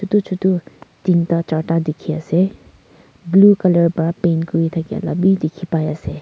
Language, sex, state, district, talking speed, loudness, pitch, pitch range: Nagamese, female, Nagaland, Kohima, 165 wpm, -17 LUFS, 170 Hz, 160-185 Hz